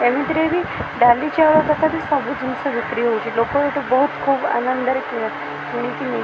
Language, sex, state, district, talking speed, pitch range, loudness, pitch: Odia, female, Odisha, Khordha, 175 wpm, 245-305 Hz, -19 LUFS, 275 Hz